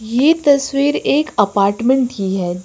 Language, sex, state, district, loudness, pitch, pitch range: Hindi, female, Uttar Pradesh, Lucknow, -15 LUFS, 245 Hz, 200-285 Hz